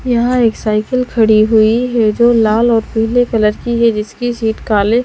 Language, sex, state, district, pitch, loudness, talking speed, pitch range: Hindi, female, Bihar, Patna, 230 Hz, -13 LUFS, 190 wpm, 220-240 Hz